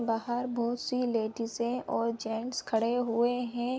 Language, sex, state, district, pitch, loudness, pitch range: Hindi, female, Chhattisgarh, Bilaspur, 240 Hz, -31 LUFS, 230-245 Hz